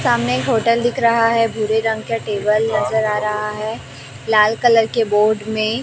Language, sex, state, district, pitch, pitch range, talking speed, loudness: Hindi, female, Chhattisgarh, Raipur, 220 Hz, 210-230 Hz, 195 wpm, -17 LUFS